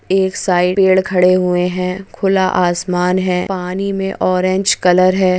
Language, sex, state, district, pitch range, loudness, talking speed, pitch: Hindi, female, West Bengal, Dakshin Dinajpur, 180-190 Hz, -15 LUFS, 210 wpm, 185 Hz